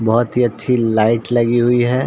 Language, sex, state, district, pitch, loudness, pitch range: Hindi, male, Uttar Pradesh, Ghazipur, 120 Hz, -16 LUFS, 115-120 Hz